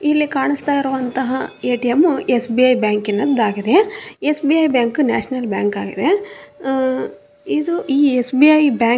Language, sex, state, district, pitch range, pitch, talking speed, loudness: Kannada, female, Karnataka, Raichur, 240-300 Hz, 265 Hz, 125 wpm, -17 LUFS